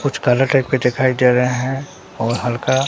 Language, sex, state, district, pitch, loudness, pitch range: Hindi, male, Bihar, Katihar, 130 Hz, -17 LUFS, 125-135 Hz